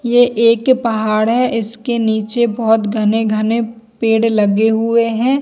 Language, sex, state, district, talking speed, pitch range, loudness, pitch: Hindi, female, Jharkhand, Jamtara, 135 wpm, 220-235 Hz, -15 LUFS, 225 Hz